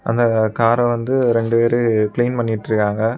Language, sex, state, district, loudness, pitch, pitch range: Tamil, male, Tamil Nadu, Kanyakumari, -17 LUFS, 115 Hz, 110-120 Hz